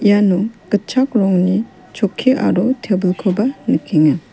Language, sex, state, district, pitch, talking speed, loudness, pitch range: Garo, female, Meghalaya, West Garo Hills, 205 Hz, 95 wpm, -16 LUFS, 185-230 Hz